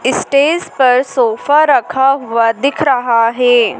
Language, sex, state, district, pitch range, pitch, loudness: Hindi, female, Madhya Pradesh, Dhar, 235-280 Hz, 260 Hz, -12 LUFS